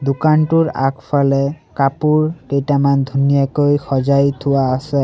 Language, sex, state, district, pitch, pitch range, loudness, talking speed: Assamese, male, Assam, Sonitpur, 140 Hz, 135-150 Hz, -16 LUFS, 95 wpm